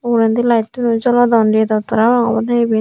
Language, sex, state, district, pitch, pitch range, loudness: Chakma, female, Tripura, Unakoti, 230 Hz, 220-240 Hz, -14 LUFS